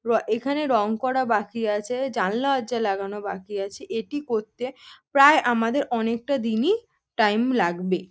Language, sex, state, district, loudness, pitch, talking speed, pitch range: Bengali, female, West Bengal, North 24 Parganas, -24 LUFS, 230 Hz, 140 wpm, 210-265 Hz